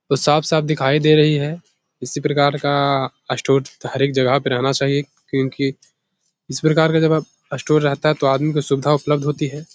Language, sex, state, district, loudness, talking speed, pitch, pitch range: Hindi, male, Bihar, Jahanabad, -18 LUFS, 195 wpm, 145 Hz, 135-155 Hz